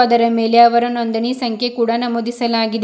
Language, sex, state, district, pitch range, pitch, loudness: Kannada, female, Karnataka, Bidar, 230-240 Hz, 235 Hz, -16 LUFS